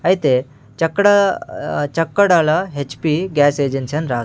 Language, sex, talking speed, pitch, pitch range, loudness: Telugu, male, 125 wpm, 155 Hz, 140-180 Hz, -17 LUFS